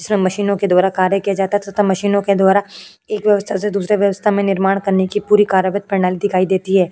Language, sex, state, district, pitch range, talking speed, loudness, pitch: Hindi, female, Uttar Pradesh, Jyotiba Phule Nagar, 190-205 Hz, 235 wpm, -16 LUFS, 200 Hz